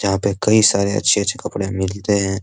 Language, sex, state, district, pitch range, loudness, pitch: Hindi, male, Bihar, Jamui, 95-100 Hz, -17 LUFS, 100 Hz